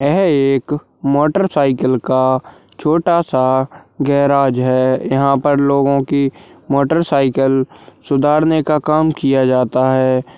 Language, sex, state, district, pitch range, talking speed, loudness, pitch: Hindi, male, Bihar, Darbhanga, 130-150 Hz, 120 wpm, -15 LUFS, 140 Hz